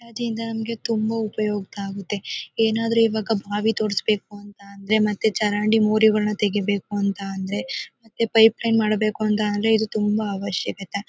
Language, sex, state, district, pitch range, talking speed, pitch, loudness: Kannada, female, Karnataka, Mysore, 205-220 Hz, 145 wpm, 215 Hz, -22 LUFS